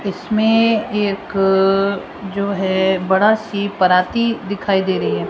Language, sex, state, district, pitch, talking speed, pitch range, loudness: Hindi, female, Rajasthan, Jaipur, 200 Hz, 125 wpm, 190-210 Hz, -17 LUFS